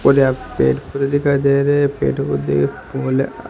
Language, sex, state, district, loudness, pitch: Hindi, male, Rajasthan, Jaipur, -17 LUFS, 135 Hz